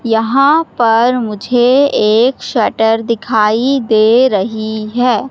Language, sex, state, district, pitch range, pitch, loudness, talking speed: Hindi, female, Madhya Pradesh, Katni, 220-250 Hz, 230 Hz, -12 LUFS, 100 wpm